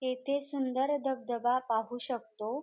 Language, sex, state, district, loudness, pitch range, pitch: Marathi, female, Maharashtra, Dhule, -33 LUFS, 240-275 Hz, 255 Hz